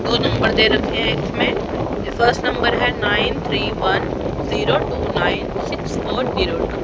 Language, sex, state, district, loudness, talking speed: Hindi, female, Haryana, Rohtak, -19 LUFS, 185 wpm